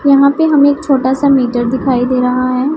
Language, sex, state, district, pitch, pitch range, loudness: Hindi, female, Punjab, Pathankot, 265 Hz, 255-285 Hz, -12 LUFS